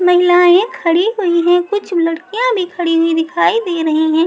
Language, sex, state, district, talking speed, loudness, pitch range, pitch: Hindi, female, Maharashtra, Mumbai Suburban, 185 wpm, -14 LUFS, 330-380 Hz, 350 Hz